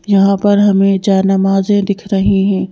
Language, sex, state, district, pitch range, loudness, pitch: Hindi, female, Madhya Pradesh, Bhopal, 195-200 Hz, -12 LUFS, 195 Hz